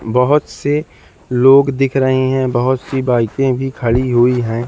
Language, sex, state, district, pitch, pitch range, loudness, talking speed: Hindi, male, Madhya Pradesh, Katni, 130 Hz, 120-135 Hz, -14 LUFS, 165 wpm